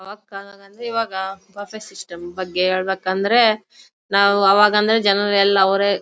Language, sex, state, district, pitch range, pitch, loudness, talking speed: Kannada, female, Karnataka, Bellary, 190-210 Hz, 200 Hz, -17 LUFS, 100 wpm